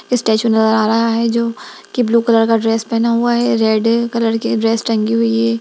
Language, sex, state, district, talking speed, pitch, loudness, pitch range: Hindi, female, Bihar, Darbhanga, 225 wpm, 230 Hz, -15 LUFS, 225-235 Hz